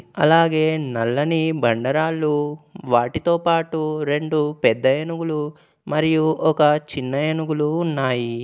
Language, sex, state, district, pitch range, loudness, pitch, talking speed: Telugu, male, Telangana, Komaram Bheem, 145-160 Hz, -20 LUFS, 155 Hz, 90 wpm